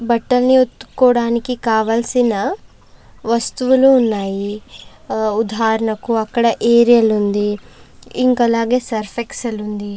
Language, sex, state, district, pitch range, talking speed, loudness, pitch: Telugu, female, Andhra Pradesh, Chittoor, 220-245 Hz, 80 wpm, -16 LUFS, 230 Hz